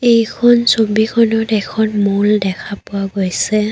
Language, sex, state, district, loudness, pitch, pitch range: Assamese, female, Assam, Kamrup Metropolitan, -14 LUFS, 215 Hz, 200-225 Hz